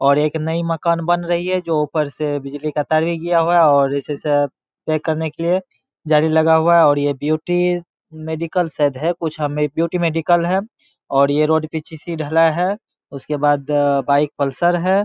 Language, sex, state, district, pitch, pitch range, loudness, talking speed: Hindi, male, Bihar, Saharsa, 160 Hz, 145-170 Hz, -18 LUFS, 205 wpm